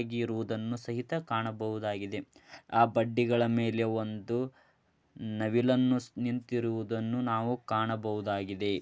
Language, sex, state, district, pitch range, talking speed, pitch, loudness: Kannada, male, Karnataka, Dharwad, 110-120 Hz, 70 wpm, 115 Hz, -32 LUFS